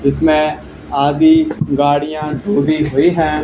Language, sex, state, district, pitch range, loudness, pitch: Hindi, male, Haryana, Charkhi Dadri, 145-155 Hz, -14 LUFS, 150 Hz